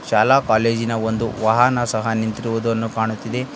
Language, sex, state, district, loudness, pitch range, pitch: Kannada, male, Karnataka, Bidar, -19 LUFS, 110-120 Hz, 115 Hz